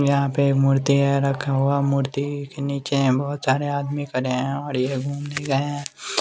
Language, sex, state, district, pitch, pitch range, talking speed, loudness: Hindi, male, Bihar, West Champaran, 140 Hz, 135-140 Hz, 215 wpm, -22 LUFS